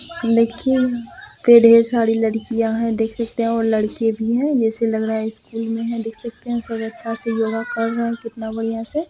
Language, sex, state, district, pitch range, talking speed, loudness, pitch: Maithili, female, Bihar, Purnia, 225-235 Hz, 220 wpm, -19 LUFS, 230 Hz